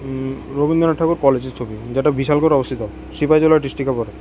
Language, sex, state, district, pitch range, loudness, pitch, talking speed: Bengali, male, Tripura, West Tripura, 130-155 Hz, -18 LUFS, 135 Hz, 185 wpm